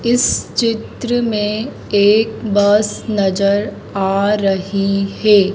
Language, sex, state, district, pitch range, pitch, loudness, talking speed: Hindi, female, Madhya Pradesh, Dhar, 200-220 Hz, 205 Hz, -16 LUFS, 95 wpm